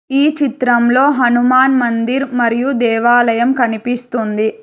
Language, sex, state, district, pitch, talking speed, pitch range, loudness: Telugu, female, Telangana, Hyderabad, 245 Hz, 90 wpm, 235-260 Hz, -13 LUFS